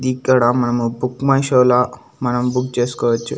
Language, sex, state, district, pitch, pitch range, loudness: Telugu, male, Andhra Pradesh, Annamaya, 125 Hz, 120-130 Hz, -17 LUFS